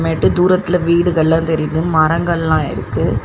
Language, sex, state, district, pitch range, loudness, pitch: Tamil, female, Tamil Nadu, Chennai, 155-170 Hz, -15 LUFS, 160 Hz